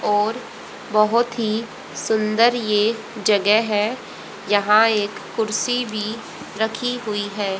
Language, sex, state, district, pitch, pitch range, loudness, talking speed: Hindi, female, Haryana, Rohtak, 215 Hz, 210-230 Hz, -20 LUFS, 110 wpm